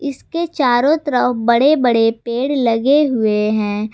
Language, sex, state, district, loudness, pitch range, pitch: Hindi, female, Jharkhand, Ranchi, -16 LUFS, 225-285 Hz, 245 Hz